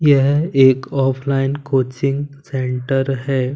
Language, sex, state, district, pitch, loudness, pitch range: Hindi, male, Punjab, Kapurthala, 135 Hz, -18 LUFS, 130-140 Hz